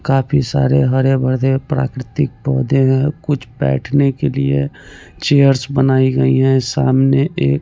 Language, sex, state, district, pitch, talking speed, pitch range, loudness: Hindi, male, Chandigarh, Chandigarh, 135 Hz, 125 wpm, 130-140 Hz, -15 LUFS